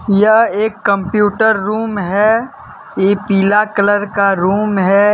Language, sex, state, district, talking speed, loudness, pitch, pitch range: Hindi, male, Jharkhand, Deoghar, 130 wpm, -13 LUFS, 205 Hz, 200-215 Hz